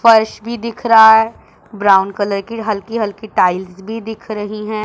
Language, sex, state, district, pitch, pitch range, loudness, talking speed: Hindi, female, Punjab, Pathankot, 215 Hz, 205-225 Hz, -15 LUFS, 185 wpm